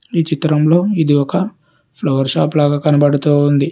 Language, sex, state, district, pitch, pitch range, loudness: Telugu, male, Telangana, Hyderabad, 150 Hz, 145-160 Hz, -14 LUFS